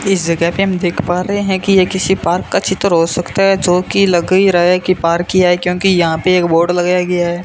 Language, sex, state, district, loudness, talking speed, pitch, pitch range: Hindi, male, Rajasthan, Bikaner, -13 LUFS, 275 wpm, 180 Hz, 175-190 Hz